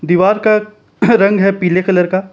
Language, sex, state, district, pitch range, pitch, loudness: Hindi, male, Jharkhand, Palamu, 185-210 Hz, 195 Hz, -12 LUFS